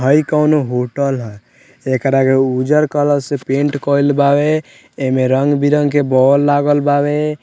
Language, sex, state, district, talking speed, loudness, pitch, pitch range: Bhojpuri, male, Bihar, Muzaffarpur, 145 wpm, -14 LUFS, 140 Hz, 135-145 Hz